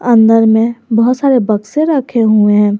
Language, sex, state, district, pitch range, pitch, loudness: Hindi, female, Jharkhand, Garhwa, 215-250 Hz, 225 Hz, -11 LUFS